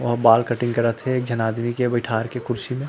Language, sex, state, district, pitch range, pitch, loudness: Chhattisgarhi, male, Chhattisgarh, Rajnandgaon, 115-125 Hz, 120 Hz, -21 LUFS